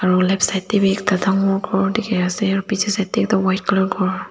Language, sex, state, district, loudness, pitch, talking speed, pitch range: Nagamese, female, Nagaland, Dimapur, -18 LUFS, 195 Hz, 250 wpm, 190-200 Hz